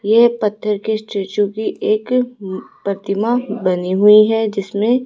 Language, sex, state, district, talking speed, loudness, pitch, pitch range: Hindi, female, Rajasthan, Jaipur, 130 wpm, -16 LUFS, 210 Hz, 200-220 Hz